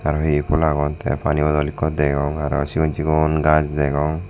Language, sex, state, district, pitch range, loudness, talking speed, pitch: Chakma, male, Tripura, Dhalai, 75-80 Hz, -19 LUFS, 210 wpm, 75 Hz